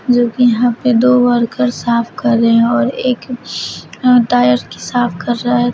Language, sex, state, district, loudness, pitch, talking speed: Hindi, female, Uttar Pradesh, Shamli, -14 LUFS, 240 Hz, 190 wpm